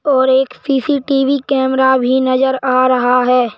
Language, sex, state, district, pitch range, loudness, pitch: Hindi, male, Madhya Pradesh, Bhopal, 255-270 Hz, -13 LUFS, 260 Hz